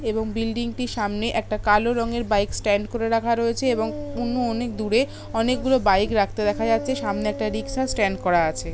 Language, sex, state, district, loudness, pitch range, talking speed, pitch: Bengali, female, West Bengal, Kolkata, -23 LUFS, 205-235 Hz, 190 wpm, 225 Hz